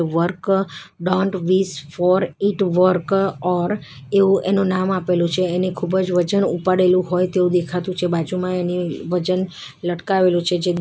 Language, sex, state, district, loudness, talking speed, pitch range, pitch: Gujarati, female, Gujarat, Valsad, -19 LUFS, 155 wpm, 175-190 Hz, 180 Hz